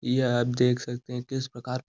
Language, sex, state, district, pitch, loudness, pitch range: Hindi, male, Uttar Pradesh, Gorakhpur, 125 Hz, -27 LUFS, 120-125 Hz